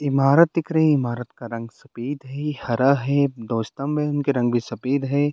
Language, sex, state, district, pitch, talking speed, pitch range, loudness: Hindi, male, Bihar, Bhagalpur, 140 Hz, 190 wpm, 120-145 Hz, -22 LUFS